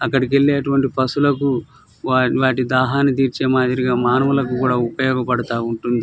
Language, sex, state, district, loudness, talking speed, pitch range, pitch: Telugu, male, Telangana, Nalgonda, -18 LUFS, 110 wpm, 125-135 Hz, 130 Hz